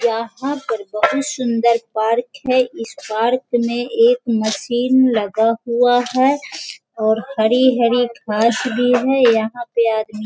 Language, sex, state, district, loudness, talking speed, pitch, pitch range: Hindi, female, Bihar, Sitamarhi, -17 LUFS, 140 wpm, 235 Hz, 225-250 Hz